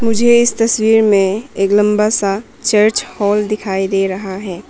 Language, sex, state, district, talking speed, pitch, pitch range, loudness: Hindi, female, Arunachal Pradesh, Papum Pare, 165 wpm, 210 Hz, 195-225 Hz, -14 LUFS